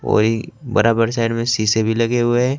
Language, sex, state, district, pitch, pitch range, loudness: Hindi, male, Uttar Pradesh, Saharanpur, 115 Hz, 110-120 Hz, -18 LUFS